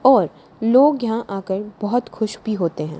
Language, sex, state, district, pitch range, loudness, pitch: Hindi, female, Haryana, Charkhi Dadri, 195-240 Hz, -20 LUFS, 220 Hz